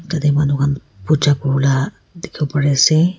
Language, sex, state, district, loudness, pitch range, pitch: Nagamese, female, Nagaland, Kohima, -17 LUFS, 140-155 Hz, 145 Hz